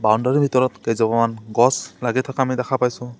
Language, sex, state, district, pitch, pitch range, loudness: Assamese, male, Assam, Sonitpur, 125 Hz, 115-130 Hz, -20 LUFS